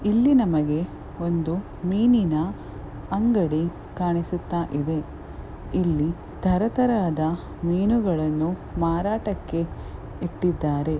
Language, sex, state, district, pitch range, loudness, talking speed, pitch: Kannada, female, Karnataka, Gulbarga, 155-195 Hz, -24 LUFS, 75 wpm, 170 Hz